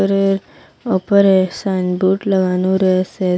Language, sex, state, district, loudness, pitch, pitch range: Bengali, female, Assam, Hailakandi, -16 LUFS, 190 Hz, 185-195 Hz